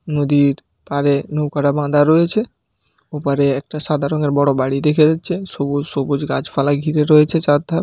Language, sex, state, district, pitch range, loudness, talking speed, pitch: Bengali, male, West Bengal, Paschim Medinipur, 140-155 Hz, -16 LUFS, 155 wpm, 145 Hz